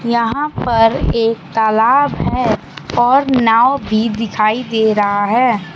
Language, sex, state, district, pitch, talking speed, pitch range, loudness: Hindi, male, Bihar, Kaimur, 225 Hz, 125 wpm, 215-245 Hz, -14 LUFS